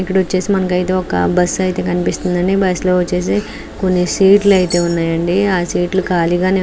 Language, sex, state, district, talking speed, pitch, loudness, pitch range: Telugu, female, Andhra Pradesh, Anantapur, 180 wpm, 180 Hz, -15 LUFS, 175-190 Hz